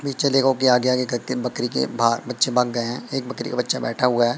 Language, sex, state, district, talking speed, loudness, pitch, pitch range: Hindi, male, Madhya Pradesh, Katni, 260 wpm, -21 LUFS, 125 Hz, 120-130 Hz